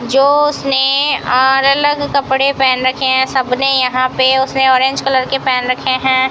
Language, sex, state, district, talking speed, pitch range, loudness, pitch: Hindi, female, Rajasthan, Bikaner, 170 wpm, 260-275 Hz, -13 LUFS, 265 Hz